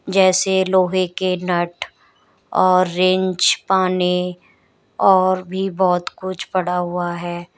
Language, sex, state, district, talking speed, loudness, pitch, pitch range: Hindi, female, Uttar Pradesh, Shamli, 110 wpm, -18 LUFS, 185 Hz, 180-185 Hz